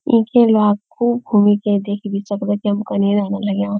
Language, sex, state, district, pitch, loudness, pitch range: Garhwali, female, Uttarakhand, Uttarkashi, 205 Hz, -17 LUFS, 205-220 Hz